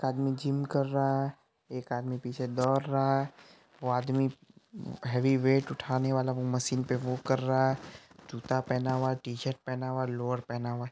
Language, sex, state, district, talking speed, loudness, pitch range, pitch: Hindi, male, Bihar, Supaul, 190 wpm, -31 LUFS, 125-135 Hz, 130 Hz